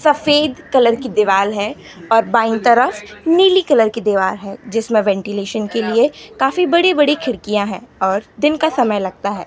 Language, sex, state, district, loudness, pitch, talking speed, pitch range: Hindi, female, Gujarat, Gandhinagar, -16 LUFS, 225 Hz, 175 wpm, 205-290 Hz